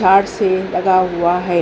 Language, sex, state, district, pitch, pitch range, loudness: Hindi, female, Uttar Pradesh, Hamirpur, 185 Hz, 180-190 Hz, -15 LUFS